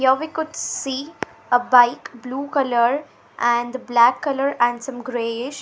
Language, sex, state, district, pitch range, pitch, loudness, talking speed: English, female, Punjab, Fazilka, 240-280 Hz, 260 Hz, -20 LUFS, 150 wpm